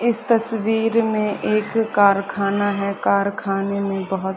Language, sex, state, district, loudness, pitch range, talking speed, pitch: Hindi, female, Chhattisgarh, Sarguja, -20 LUFS, 200-225 Hz, 135 wpm, 205 Hz